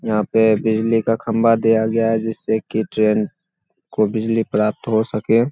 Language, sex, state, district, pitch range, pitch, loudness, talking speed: Hindi, male, Bihar, Saharsa, 110-115 Hz, 110 Hz, -18 LUFS, 175 wpm